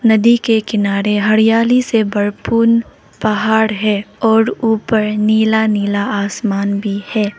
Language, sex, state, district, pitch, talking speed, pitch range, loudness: Hindi, female, Arunachal Pradesh, Lower Dibang Valley, 215 Hz, 120 wpm, 205-225 Hz, -14 LUFS